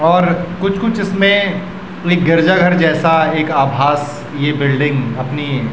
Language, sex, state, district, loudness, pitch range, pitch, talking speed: Hindi, male, Uttarakhand, Tehri Garhwal, -14 LUFS, 145-185 Hz, 165 Hz, 125 wpm